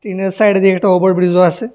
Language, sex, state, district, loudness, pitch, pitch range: Bengali, male, Tripura, West Tripura, -12 LUFS, 190 Hz, 180-200 Hz